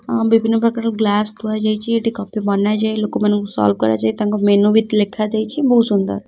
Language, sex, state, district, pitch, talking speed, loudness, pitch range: Odia, female, Odisha, Khordha, 215 Hz, 200 wpm, -17 LUFS, 205-225 Hz